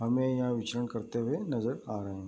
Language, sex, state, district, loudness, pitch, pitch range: Hindi, male, Bihar, Bhagalpur, -33 LUFS, 115 Hz, 110-120 Hz